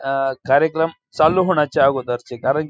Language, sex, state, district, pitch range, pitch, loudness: Marathi, female, Maharashtra, Dhule, 125-160 Hz, 135 Hz, -18 LUFS